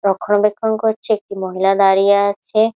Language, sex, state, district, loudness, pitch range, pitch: Bengali, female, West Bengal, Malda, -16 LUFS, 195-220 Hz, 200 Hz